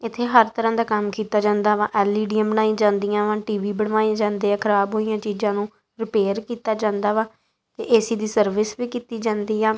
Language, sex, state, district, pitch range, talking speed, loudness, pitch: Punjabi, female, Punjab, Kapurthala, 210-220 Hz, 210 wpm, -21 LUFS, 215 Hz